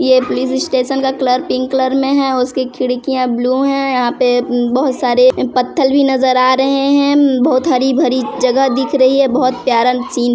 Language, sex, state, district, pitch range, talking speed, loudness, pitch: Hindi, female, Chhattisgarh, Sarguja, 250-270 Hz, 205 wpm, -13 LUFS, 260 Hz